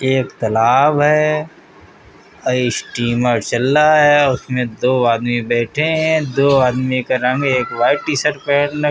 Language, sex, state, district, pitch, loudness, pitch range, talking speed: Hindi, male, Uttar Pradesh, Hamirpur, 130 Hz, -15 LUFS, 120-150 Hz, 150 wpm